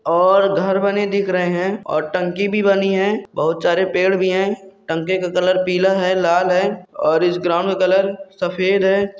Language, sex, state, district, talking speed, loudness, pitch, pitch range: Hindi, male, Jharkhand, Jamtara, 195 wpm, -17 LUFS, 185 Hz, 180-195 Hz